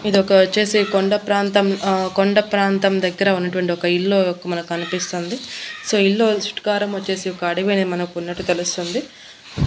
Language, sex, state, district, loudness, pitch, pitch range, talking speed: Telugu, female, Andhra Pradesh, Annamaya, -19 LUFS, 195 Hz, 180-200 Hz, 150 wpm